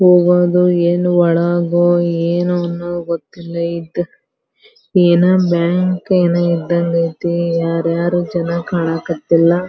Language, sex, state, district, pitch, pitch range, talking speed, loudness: Kannada, female, Karnataka, Belgaum, 175 Hz, 170-175 Hz, 95 wpm, -15 LUFS